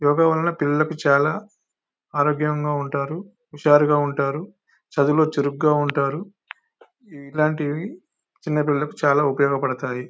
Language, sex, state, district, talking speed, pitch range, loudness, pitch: Telugu, male, Telangana, Nalgonda, 100 wpm, 140-160 Hz, -21 LUFS, 150 Hz